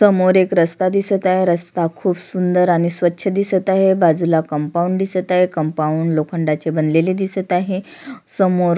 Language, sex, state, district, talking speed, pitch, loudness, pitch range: Marathi, female, Maharashtra, Sindhudurg, 150 wpm, 180 Hz, -17 LUFS, 170-190 Hz